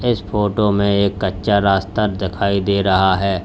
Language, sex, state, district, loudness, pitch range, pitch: Hindi, male, Uttar Pradesh, Lalitpur, -17 LUFS, 95-105 Hz, 100 Hz